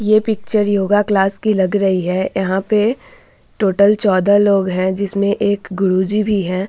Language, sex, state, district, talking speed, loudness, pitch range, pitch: Hindi, female, Bihar, Vaishali, 195 wpm, -15 LUFS, 190-210 Hz, 200 Hz